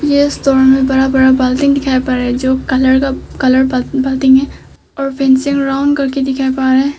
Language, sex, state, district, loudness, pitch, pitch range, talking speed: Hindi, female, Arunachal Pradesh, Papum Pare, -12 LUFS, 265 Hz, 260-275 Hz, 180 wpm